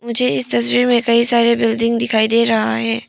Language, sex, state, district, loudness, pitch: Hindi, female, Arunachal Pradesh, Papum Pare, -15 LUFS, 230 Hz